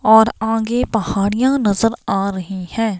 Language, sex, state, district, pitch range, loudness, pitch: Hindi, female, Himachal Pradesh, Shimla, 195-225 Hz, -17 LUFS, 220 Hz